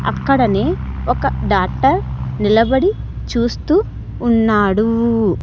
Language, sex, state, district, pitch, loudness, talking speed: Telugu, male, Andhra Pradesh, Sri Satya Sai, 220 Hz, -16 LUFS, 65 wpm